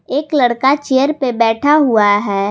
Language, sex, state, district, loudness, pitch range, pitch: Hindi, female, Jharkhand, Garhwa, -13 LUFS, 225-285 Hz, 260 Hz